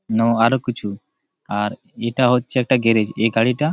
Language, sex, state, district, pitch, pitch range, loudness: Bengali, male, West Bengal, Malda, 115 Hz, 110-125 Hz, -19 LUFS